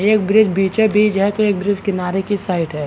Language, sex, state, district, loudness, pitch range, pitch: Hindi, male, Bihar, Supaul, -16 LUFS, 190-210 Hz, 200 Hz